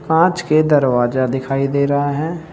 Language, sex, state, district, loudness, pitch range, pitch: Hindi, male, Uttar Pradesh, Saharanpur, -16 LUFS, 135-160 Hz, 145 Hz